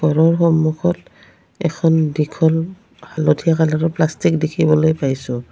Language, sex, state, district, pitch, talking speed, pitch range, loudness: Assamese, female, Assam, Kamrup Metropolitan, 160 Hz, 100 wpm, 155-165 Hz, -17 LUFS